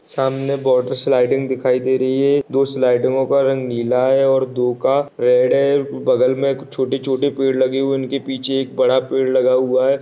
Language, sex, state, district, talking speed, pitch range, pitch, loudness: Hindi, male, Uttar Pradesh, Jyotiba Phule Nagar, 180 wpm, 130-135 Hz, 135 Hz, -17 LUFS